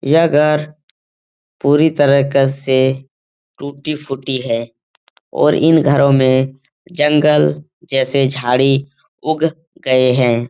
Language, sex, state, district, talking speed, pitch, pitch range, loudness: Hindi, male, Bihar, Jamui, 105 wpm, 140 Hz, 130-150 Hz, -14 LUFS